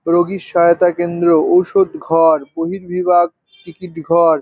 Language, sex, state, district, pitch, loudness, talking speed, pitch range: Bengali, male, West Bengal, North 24 Parganas, 175 Hz, -14 LUFS, 95 wpm, 165-185 Hz